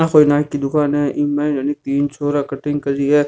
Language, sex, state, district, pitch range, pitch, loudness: Rajasthani, male, Rajasthan, Nagaur, 140-145 Hz, 145 Hz, -18 LUFS